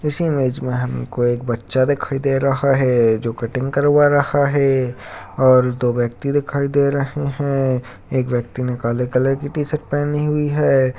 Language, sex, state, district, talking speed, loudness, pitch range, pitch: Hindi, male, Uttarakhand, Uttarkashi, 175 wpm, -18 LUFS, 125-145 Hz, 135 Hz